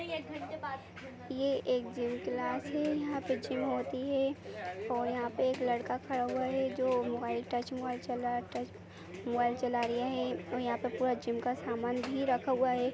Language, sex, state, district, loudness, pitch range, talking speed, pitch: Hindi, female, Chhattisgarh, Raigarh, -35 LUFS, 240-260 Hz, 180 wpm, 250 Hz